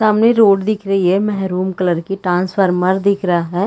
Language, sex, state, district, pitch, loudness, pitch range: Hindi, female, Chhattisgarh, Bilaspur, 190 Hz, -15 LUFS, 180-200 Hz